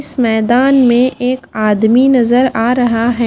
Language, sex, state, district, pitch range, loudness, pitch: Hindi, female, Haryana, Jhajjar, 230-255 Hz, -12 LUFS, 245 Hz